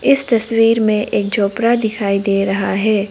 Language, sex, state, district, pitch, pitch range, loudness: Hindi, female, Arunachal Pradesh, Lower Dibang Valley, 215 Hz, 200-230 Hz, -16 LUFS